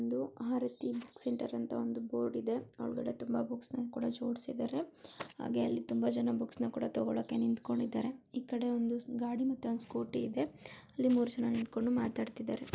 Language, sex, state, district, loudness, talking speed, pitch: Kannada, female, Karnataka, Shimoga, -36 LUFS, 175 wpm, 240 Hz